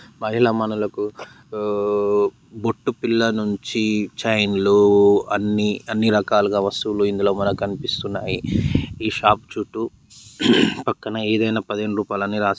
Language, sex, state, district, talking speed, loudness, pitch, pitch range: Telugu, male, Andhra Pradesh, Srikakulam, 110 wpm, -20 LUFS, 105 Hz, 100-110 Hz